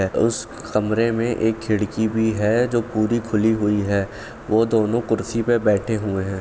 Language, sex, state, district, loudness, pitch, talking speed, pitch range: Hindi, male, Bihar, Saran, -21 LUFS, 110 Hz, 180 wpm, 105-115 Hz